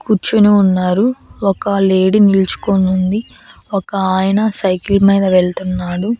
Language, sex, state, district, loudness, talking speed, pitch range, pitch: Telugu, female, Andhra Pradesh, Annamaya, -14 LUFS, 105 wpm, 185-205 Hz, 195 Hz